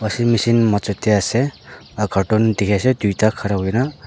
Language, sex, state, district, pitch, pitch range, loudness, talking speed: Nagamese, male, Nagaland, Dimapur, 110 Hz, 100-120 Hz, -18 LUFS, 190 wpm